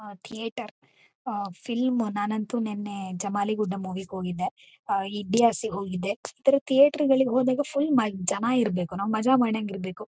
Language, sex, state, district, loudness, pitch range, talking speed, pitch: Kannada, female, Karnataka, Mysore, -26 LUFS, 200-245 Hz, 155 wpm, 215 Hz